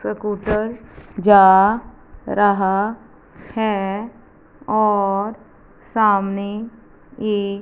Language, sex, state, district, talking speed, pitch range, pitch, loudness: Hindi, female, Punjab, Fazilka, 55 wpm, 200-215 Hz, 205 Hz, -18 LUFS